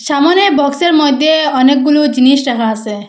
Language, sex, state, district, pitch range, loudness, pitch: Bengali, female, Assam, Hailakandi, 255-300 Hz, -11 LUFS, 280 Hz